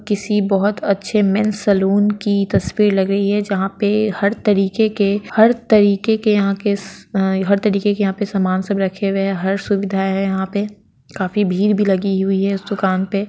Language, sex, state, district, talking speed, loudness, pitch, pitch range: Hindi, female, Bihar, Sitamarhi, 205 wpm, -17 LUFS, 200 Hz, 195-205 Hz